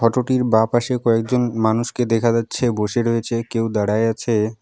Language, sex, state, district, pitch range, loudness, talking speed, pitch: Bengali, male, West Bengal, Alipurduar, 110-120 Hz, -19 LUFS, 140 wpm, 115 Hz